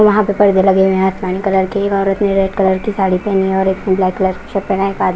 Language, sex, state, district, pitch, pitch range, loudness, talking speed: Hindi, female, Punjab, Kapurthala, 190 Hz, 190-200 Hz, -14 LUFS, 300 wpm